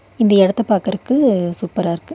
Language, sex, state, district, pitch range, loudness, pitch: Tamil, female, Tamil Nadu, Nilgiris, 190-235 Hz, -16 LUFS, 200 Hz